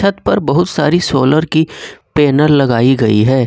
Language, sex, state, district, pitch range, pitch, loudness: Hindi, male, Jharkhand, Ranchi, 130-160 Hz, 150 Hz, -12 LUFS